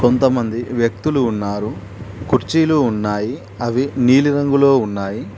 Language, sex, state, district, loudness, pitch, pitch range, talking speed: Telugu, male, Telangana, Mahabubabad, -17 LUFS, 120 Hz, 105-135 Hz, 90 wpm